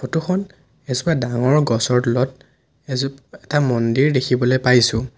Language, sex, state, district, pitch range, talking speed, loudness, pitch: Assamese, male, Assam, Sonitpur, 125-145 Hz, 115 wpm, -19 LUFS, 130 Hz